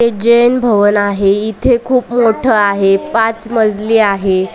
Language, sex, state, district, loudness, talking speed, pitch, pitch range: Marathi, female, Maharashtra, Aurangabad, -12 LUFS, 145 wpm, 220 Hz, 205-235 Hz